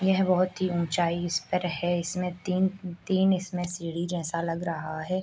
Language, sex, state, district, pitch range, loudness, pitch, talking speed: Hindi, male, Bihar, Bhagalpur, 170-185 Hz, -28 LUFS, 175 Hz, 185 wpm